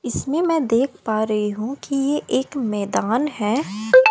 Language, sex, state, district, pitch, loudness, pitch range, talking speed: Hindi, female, Haryana, Jhajjar, 245 Hz, -21 LUFS, 215-285 Hz, 160 wpm